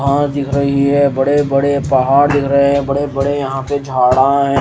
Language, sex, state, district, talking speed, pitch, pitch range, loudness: Hindi, male, Odisha, Nuapada, 195 wpm, 140 Hz, 135-140 Hz, -14 LUFS